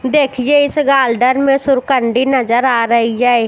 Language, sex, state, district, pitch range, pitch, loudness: Hindi, female, Chandigarh, Chandigarh, 245-275 Hz, 255 Hz, -13 LUFS